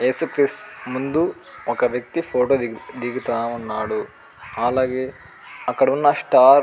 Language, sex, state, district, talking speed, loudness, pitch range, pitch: Telugu, male, Andhra Pradesh, Anantapur, 100 wpm, -21 LUFS, 120-140 Hz, 130 Hz